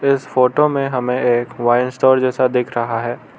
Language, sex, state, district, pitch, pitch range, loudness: Hindi, male, Arunachal Pradesh, Lower Dibang Valley, 125 Hz, 120-130 Hz, -17 LUFS